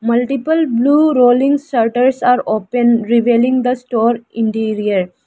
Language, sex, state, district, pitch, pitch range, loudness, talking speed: English, female, Arunachal Pradesh, Lower Dibang Valley, 240 Hz, 225-255 Hz, -14 LUFS, 115 wpm